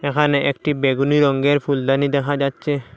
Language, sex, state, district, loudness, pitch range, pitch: Bengali, male, Assam, Hailakandi, -18 LUFS, 140-145 Hz, 140 Hz